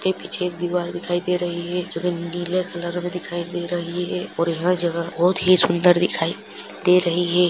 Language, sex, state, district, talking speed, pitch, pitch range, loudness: Hindi, male, Chhattisgarh, Balrampur, 185 wpm, 175 Hz, 175-180 Hz, -21 LUFS